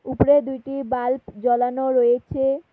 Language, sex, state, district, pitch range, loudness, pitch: Bengali, female, West Bengal, Alipurduar, 245-270 Hz, -21 LUFS, 260 Hz